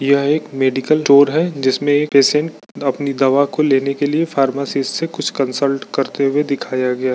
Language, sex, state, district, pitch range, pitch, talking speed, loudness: Hindi, male, Bihar, Bhagalpur, 135-150 Hz, 140 Hz, 185 wpm, -16 LUFS